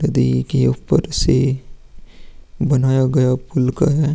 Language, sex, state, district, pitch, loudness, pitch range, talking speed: Hindi, male, Bihar, Vaishali, 130 Hz, -17 LUFS, 125-135 Hz, 130 wpm